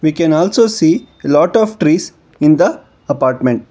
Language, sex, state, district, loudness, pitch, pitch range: English, male, Karnataka, Bangalore, -13 LUFS, 155 Hz, 145-175 Hz